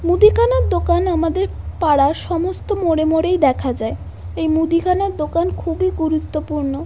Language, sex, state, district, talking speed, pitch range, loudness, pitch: Bengali, female, West Bengal, Kolkata, 130 wpm, 305-360 Hz, -18 LUFS, 330 Hz